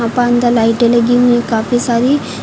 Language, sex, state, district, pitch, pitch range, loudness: Hindi, female, Uttar Pradesh, Lucknow, 240 Hz, 235-245 Hz, -12 LUFS